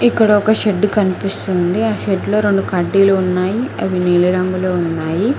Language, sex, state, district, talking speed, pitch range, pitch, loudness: Telugu, female, Telangana, Mahabubabad, 155 wpm, 180-210 Hz, 195 Hz, -15 LUFS